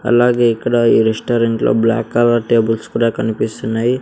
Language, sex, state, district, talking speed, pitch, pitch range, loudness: Telugu, male, Andhra Pradesh, Sri Satya Sai, 135 wpm, 115 Hz, 115-120 Hz, -15 LUFS